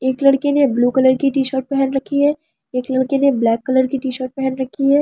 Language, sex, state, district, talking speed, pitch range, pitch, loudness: Hindi, female, Delhi, New Delhi, 285 wpm, 260-275 Hz, 265 Hz, -17 LUFS